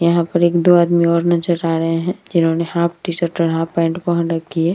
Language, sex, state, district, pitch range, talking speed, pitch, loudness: Hindi, female, Uttar Pradesh, Hamirpur, 165-170 Hz, 240 wpm, 170 Hz, -17 LUFS